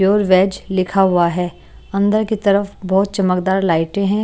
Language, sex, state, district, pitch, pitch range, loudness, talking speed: Hindi, female, Maharashtra, Washim, 195 Hz, 185-200 Hz, -17 LUFS, 170 wpm